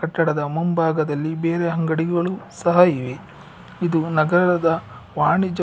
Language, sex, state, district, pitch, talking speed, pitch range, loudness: Kannada, male, Karnataka, Bangalore, 165 Hz, 95 wpm, 160-175 Hz, -20 LUFS